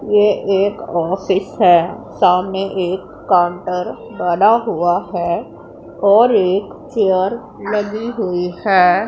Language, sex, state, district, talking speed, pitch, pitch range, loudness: Hindi, female, Punjab, Pathankot, 105 wpm, 190 Hz, 180-205 Hz, -16 LUFS